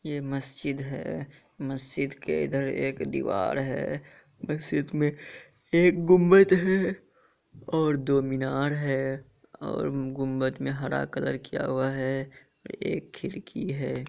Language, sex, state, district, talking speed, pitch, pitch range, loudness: Hindi, male, Bihar, Kishanganj, 125 wpm, 140 Hz, 135-150 Hz, -27 LUFS